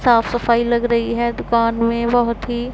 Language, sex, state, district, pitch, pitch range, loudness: Hindi, female, Punjab, Pathankot, 235 Hz, 235-240 Hz, -18 LUFS